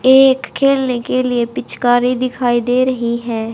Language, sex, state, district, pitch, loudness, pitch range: Hindi, female, Haryana, Jhajjar, 250 Hz, -15 LUFS, 240-255 Hz